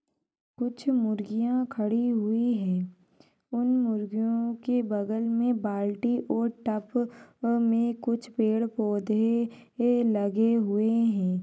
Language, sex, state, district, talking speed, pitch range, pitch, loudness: Hindi, female, Uttar Pradesh, Ghazipur, 105 wpm, 215-240 Hz, 230 Hz, -27 LUFS